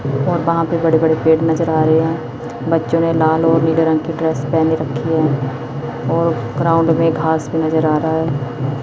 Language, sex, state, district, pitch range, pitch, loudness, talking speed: Hindi, female, Chandigarh, Chandigarh, 140-165 Hz, 160 Hz, -16 LUFS, 205 wpm